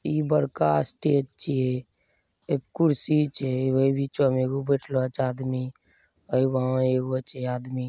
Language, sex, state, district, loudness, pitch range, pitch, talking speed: Angika, male, Bihar, Bhagalpur, -25 LUFS, 130-140 Hz, 130 Hz, 150 wpm